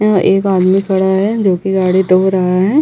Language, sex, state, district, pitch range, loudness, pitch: Hindi, female, Chhattisgarh, Bastar, 185-195 Hz, -12 LUFS, 190 Hz